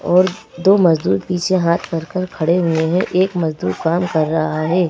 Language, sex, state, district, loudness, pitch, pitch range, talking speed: Hindi, female, Madhya Pradesh, Bhopal, -17 LUFS, 175 Hz, 160-180 Hz, 185 wpm